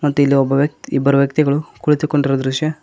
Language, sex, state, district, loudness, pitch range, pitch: Kannada, male, Karnataka, Koppal, -16 LUFS, 140-150 Hz, 145 Hz